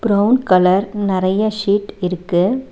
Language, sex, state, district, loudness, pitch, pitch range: Tamil, female, Tamil Nadu, Nilgiris, -16 LUFS, 200 Hz, 185-215 Hz